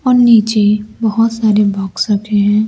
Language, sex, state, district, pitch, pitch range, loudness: Hindi, female, Bihar, Kaimur, 215 Hz, 205-225 Hz, -13 LUFS